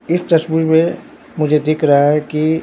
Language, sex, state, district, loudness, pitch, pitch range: Hindi, male, Bihar, Katihar, -15 LUFS, 155 Hz, 150-160 Hz